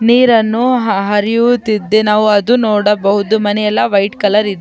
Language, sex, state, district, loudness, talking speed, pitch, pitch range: Kannada, female, Karnataka, Chamarajanagar, -12 LUFS, 145 wpm, 215 Hz, 205-230 Hz